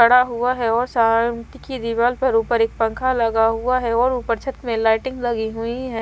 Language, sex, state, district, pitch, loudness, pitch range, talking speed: Hindi, female, Haryana, Rohtak, 235 Hz, -20 LUFS, 225-250 Hz, 220 wpm